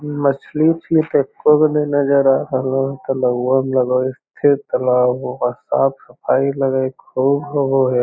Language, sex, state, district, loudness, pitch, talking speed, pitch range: Magahi, male, Bihar, Lakhisarai, -17 LUFS, 135 Hz, 170 wpm, 130-145 Hz